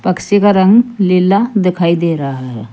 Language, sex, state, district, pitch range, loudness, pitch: Hindi, female, Uttar Pradesh, Saharanpur, 170-205 Hz, -12 LUFS, 185 Hz